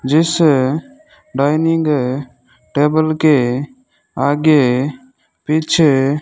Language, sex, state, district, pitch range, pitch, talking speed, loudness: Hindi, male, Rajasthan, Bikaner, 135-160 Hz, 145 Hz, 65 wpm, -15 LUFS